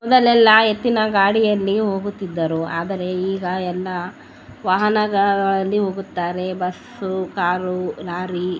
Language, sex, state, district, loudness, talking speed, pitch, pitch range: Kannada, female, Karnataka, Bellary, -19 LUFS, 100 wpm, 190 Hz, 180-210 Hz